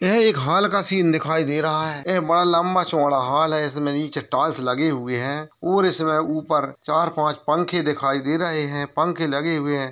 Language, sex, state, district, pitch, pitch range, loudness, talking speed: Hindi, male, Bihar, Kishanganj, 155 Hz, 145-170 Hz, -21 LUFS, 200 wpm